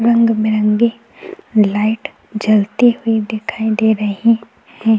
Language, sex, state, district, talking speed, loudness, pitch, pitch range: Hindi, female, Goa, North and South Goa, 95 wpm, -15 LUFS, 220 Hz, 215-230 Hz